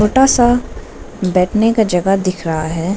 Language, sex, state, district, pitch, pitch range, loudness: Hindi, female, Arunachal Pradesh, Lower Dibang Valley, 195 Hz, 180-225 Hz, -14 LUFS